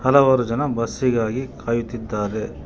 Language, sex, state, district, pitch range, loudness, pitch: Kannada, male, Karnataka, Bangalore, 110-130 Hz, -21 LUFS, 115 Hz